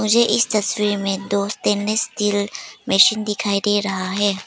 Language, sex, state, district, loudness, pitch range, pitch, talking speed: Hindi, female, Arunachal Pradesh, Papum Pare, -19 LUFS, 200-215 Hz, 205 Hz, 160 wpm